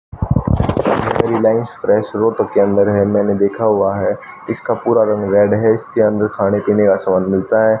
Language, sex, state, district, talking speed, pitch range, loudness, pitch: Hindi, male, Haryana, Rohtak, 160 wpm, 100-110 Hz, -15 LUFS, 105 Hz